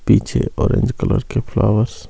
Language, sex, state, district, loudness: Hindi, male, Himachal Pradesh, Shimla, -18 LUFS